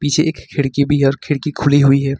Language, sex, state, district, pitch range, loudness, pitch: Hindi, male, Jharkhand, Ranchi, 135-145 Hz, -16 LUFS, 145 Hz